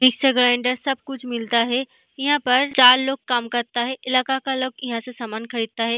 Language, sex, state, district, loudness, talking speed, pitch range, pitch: Hindi, female, Bihar, East Champaran, -20 LUFS, 210 wpm, 240-265 Hz, 250 Hz